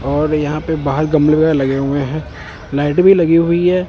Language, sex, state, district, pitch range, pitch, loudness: Hindi, male, Punjab, Kapurthala, 140-165 Hz, 155 Hz, -14 LUFS